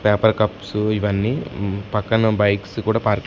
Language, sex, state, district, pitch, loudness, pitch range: Telugu, male, Andhra Pradesh, Sri Satya Sai, 105 Hz, -20 LUFS, 100-110 Hz